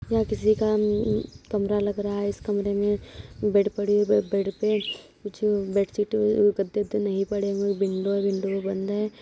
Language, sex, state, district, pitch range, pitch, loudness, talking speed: Hindi, female, Uttar Pradesh, Budaun, 200-210 Hz, 205 Hz, -25 LUFS, 175 wpm